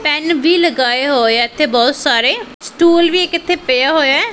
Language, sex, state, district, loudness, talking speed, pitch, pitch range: Punjabi, female, Punjab, Pathankot, -13 LUFS, 180 wpm, 300 Hz, 260-340 Hz